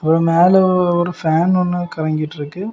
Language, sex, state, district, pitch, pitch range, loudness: Tamil, male, Tamil Nadu, Kanyakumari, 175 Hz, 160-180 Hz, -16 LUFS